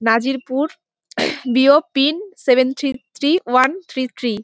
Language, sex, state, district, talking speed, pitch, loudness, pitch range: Bengali, female, West Bengal, Dakshin Dinajpur, 135 wpm, 265 Hz, -18 LUFS, 255-295 Hz